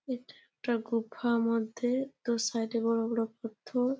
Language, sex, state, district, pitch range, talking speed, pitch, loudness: Bengali, female, West Bengal, Jalpaiguri, 230-245 Hz, 150 wpm, 230 Hz, -32 LUFS